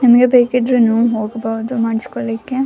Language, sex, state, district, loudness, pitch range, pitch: Kannada, female, Karnataka, Dakshina Kannada, -15 LUFS, 225-250 Hz, 235 Hz